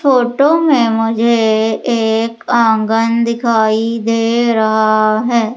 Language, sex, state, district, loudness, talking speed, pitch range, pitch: Hindi, female, Madhya Pradesh, Umaria, -13 LUFS, 95 wpm, 220-235 Hz, 230 Hz